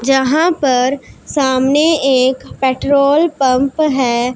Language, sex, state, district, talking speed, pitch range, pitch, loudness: Hindi, female, Punjab, Pathankot, 95 wpm, 260-295 Hz, 270 Hz, -14 LUFS